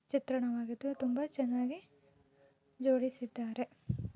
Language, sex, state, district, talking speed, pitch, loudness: Kannada, female, Karnataka, Mysore, 60 wpm, 245 Hz, -36 LUFS